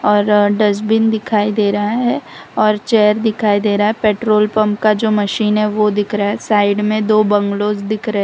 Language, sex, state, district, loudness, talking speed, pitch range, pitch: Hindi, female, Gujarat, Valsad, -15 LUFS, 220 wpm, 205-215 Hz, 210 Hz